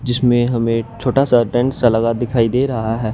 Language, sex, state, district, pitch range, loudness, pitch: Hindi, male, Haryana, Rohtak, 115-125 Hz, -16 LUFS, 120 Hz